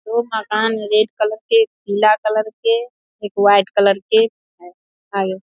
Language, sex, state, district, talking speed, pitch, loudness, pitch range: Hindi, female, Bihar, Saharsa, 165 wpm, 215 Hz, -17 LUFS, 200-225 Hz